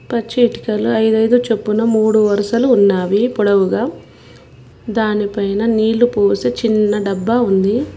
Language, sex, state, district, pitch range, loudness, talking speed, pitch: Telugu, female, Telangana, Mahabubabad, 205-230 Hz, -15 LUFS, 115 wpm, 220 Hz